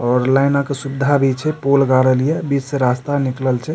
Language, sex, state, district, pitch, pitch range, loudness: Maithili, male, Bihar, Supaul, 135 Hz, 130-140 Hz, -17 LUFS